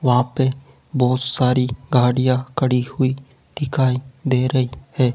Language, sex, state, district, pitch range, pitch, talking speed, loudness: Hindi, male, Rajasthan, Jaipur, 125-135 Hz, 130 Hz, 130 wpm, -20 LUFS